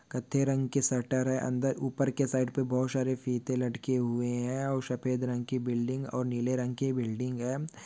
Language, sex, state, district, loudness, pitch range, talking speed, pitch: Hindi, male, Maharashtra, Dhule, -31 LUFS, 125-135 Hz, 205 wpm, 130 Hz